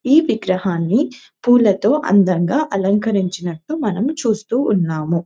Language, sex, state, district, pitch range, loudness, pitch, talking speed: Telugu, female, Telangana, Nalgonda, 180-245 Hz, -17 LUFS, 205 Hz, 90 wpm